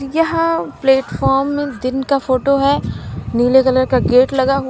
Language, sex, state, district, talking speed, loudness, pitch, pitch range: Hindi, female, Uttar Pradesh, Lalitpur, 140 wpm, -15 LUFS, 270 Hz, 260-280 Hz